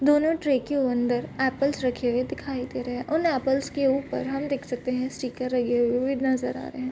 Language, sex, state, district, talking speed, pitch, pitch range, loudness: Hindi, female, Bihar, Vaishali, 235 wpm, 265 Hz, 250-275 Hz, -26 LUFS